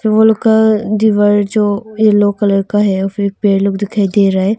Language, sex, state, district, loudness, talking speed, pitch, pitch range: Hindi, female, Arunachal Pradesh, Longding, -12 LUFS, 210 wpm, 205 Hz, 200-215 Hz